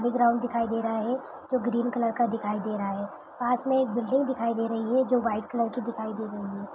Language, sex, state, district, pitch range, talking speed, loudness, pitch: Hindi, female, Bihar, Saran, 220-245 Hz, 265 wpm, -28 LUFS, 235 Hz